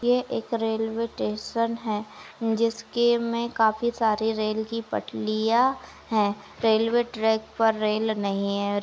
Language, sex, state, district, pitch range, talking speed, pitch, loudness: Hindi, female, Uttar Pradesh, Jyotiba Phule Nagar, 215-230 Hz, 145 wpm, 220 Hz, -25 LUFS